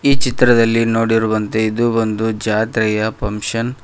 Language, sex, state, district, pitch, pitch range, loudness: Kannada, male, Karnataka, Koppal, 115 Hz, 110-115 Hz, -16 LUFS